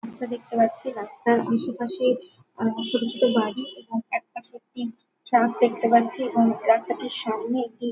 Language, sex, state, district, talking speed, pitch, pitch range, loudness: Bengali, female, West Bengal, Jhargram, 145 wpm, 235 Hz, 225-250 Hz, -24 LUFS